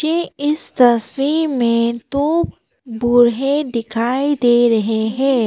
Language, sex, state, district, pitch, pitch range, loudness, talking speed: Hindi, female, Arunachal Pradesh, Papum Pare, 245 Hz, 235-290 Hz, -16 LUFS, 110 wpm